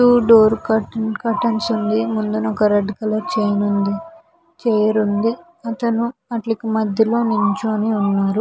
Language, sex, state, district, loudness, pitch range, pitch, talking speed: Telugu, female, Andhra Pradesh, Visakhapatnam, -18 LUFS, 215-230 Hz, 220 Hz, 130 wpm